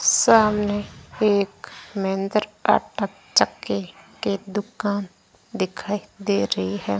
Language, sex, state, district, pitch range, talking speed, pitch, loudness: Hindi, female, Rajasthan, Bikaner, 190-210 Hz, 95 wpm, 200 Hz, -23 LUFS